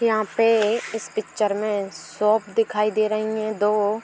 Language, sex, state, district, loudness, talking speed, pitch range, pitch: Hindi, female, Uttar Pradesh, Etah, -22 LUFS, 165 wpm, 210-220 Hz, 215 Hz